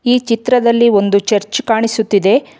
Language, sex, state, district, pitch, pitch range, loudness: Kannada, female, Karnataka, Bangalore, 225 Hz, 205-240 Hz, -13 LUFS